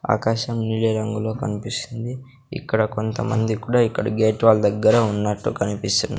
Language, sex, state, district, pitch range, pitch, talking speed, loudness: Telugu, male, Andhra Pradesh, Sri Satya Sai, 110-120 Hz, 110 Hz, 125 wpm, -21 LUFS